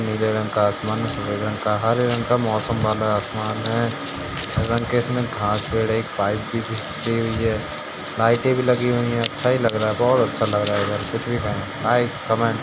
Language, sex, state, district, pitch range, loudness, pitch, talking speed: Hindi, male, Uttar Pradesh, Jyotiba Phule Nagar, 105-120 Hz, -21 LUFS, 110 Hz, 130 wpm